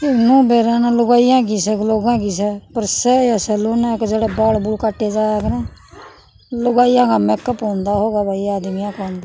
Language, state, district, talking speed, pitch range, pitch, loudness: Haryanvi, Haryana, Rohtak, 210 wpm, 205-240 Hz, 220 Hz, -16 LUFS